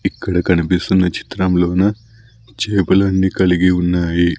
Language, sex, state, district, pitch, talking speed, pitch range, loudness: Telugu, male, Andhra Pradesh, Sri Satya Sai, 95 Hz, 80 wpm, 90-100 Hz, -16 LUFS